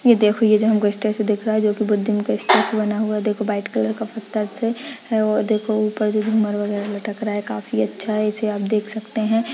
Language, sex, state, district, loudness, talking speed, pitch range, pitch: Hindi, female, Uttarakhand, Tehri Garhwal, -20 LUFS, 245 wpm, 210-220 Hz, 215 Hz